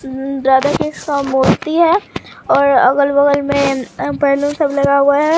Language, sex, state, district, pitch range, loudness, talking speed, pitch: Hindi, male, Bihar, Katihar, 275-290 Hz, -14 LUFS, 180 wpm, 280 Hz